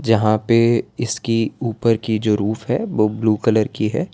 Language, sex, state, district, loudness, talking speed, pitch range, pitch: Hindi, male, Gujarat, Valsad, -19 LUFS, 190 wpm, 110-115 Hz, 110 Hz